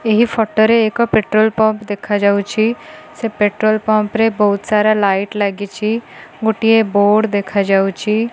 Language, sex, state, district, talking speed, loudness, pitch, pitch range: Odia, female, Odisha, Khordha, 125 wpm, -15 LUFS, 215 Hz, 205-225 Hz